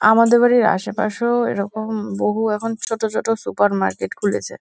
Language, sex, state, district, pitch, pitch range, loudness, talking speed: Bengali, female, West Bengal, Kolkata, 220 Hz, 205-225 Hz, -19 LUFS, 155 wpm